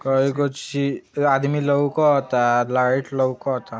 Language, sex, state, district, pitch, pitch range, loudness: Bhojpuri, male, Uttar Pradesh, Ghazipur, 135 Hz, 130-140 Hz, -20 LUFS